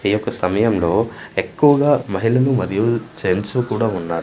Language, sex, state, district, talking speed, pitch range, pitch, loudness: Telugu, male, Andhra Pradesh, Manyam, 125 wpm, 95-125 Hz, 115 Hz, -18 LUFS